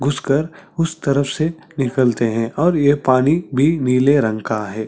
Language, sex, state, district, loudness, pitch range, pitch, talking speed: Hindi, male, Chhattisgarh, Sarguja, -17 LUFS, 125-150 Hz, 140 Hz, 195 wpm